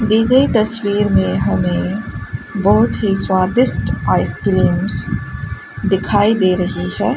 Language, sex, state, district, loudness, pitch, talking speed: Hindi, female, Rajasthan, Bikaner, -16 LUFS, 195 Hz, 110 wpm